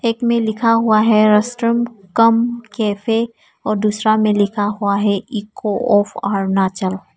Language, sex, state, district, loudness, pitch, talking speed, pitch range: Hindi, female, Arunachal Pradesh, Papum Pare, -17 LUFS, 215 Hz, 140 wpm, 205-230 Hz